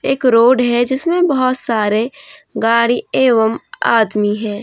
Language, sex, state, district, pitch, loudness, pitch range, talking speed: Hindi, female, Jharkhand, Deoghar, 240 Hz, -15 LUFS, 225-265 Hz, 130 wpm